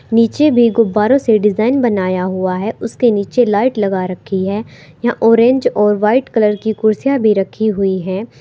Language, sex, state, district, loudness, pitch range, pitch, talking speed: Hindi, female, Uttar Pradesh, Saharanpur, -14 LUFS, 195-235 Hz, 215 Hz, 180 wpm